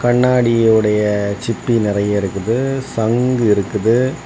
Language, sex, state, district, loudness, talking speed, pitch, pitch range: Tamil, male, Tamil Nadu, Kanyakumari, -16 LUFS, 85 wpm, 115 Hz, 105-125 Hz